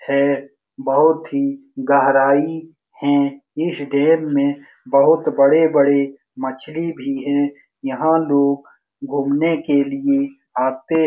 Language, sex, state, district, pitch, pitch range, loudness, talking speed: Hindi, male, Bihar, Saran, 140 Hz, 140-160 Hz, -18 LUFS, 110 wpm